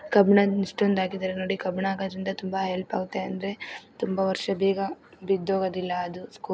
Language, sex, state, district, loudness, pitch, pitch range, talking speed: Kannada, female, Karnataka, Belgaum, -27 LUFS, 190 Hz, 185-195 Hz, 140 wpm